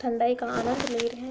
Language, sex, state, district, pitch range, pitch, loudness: Hindi, female, Uttar Pradesh, Hamirpur, 235-250 Hz, 240 Hz, -27 LUFS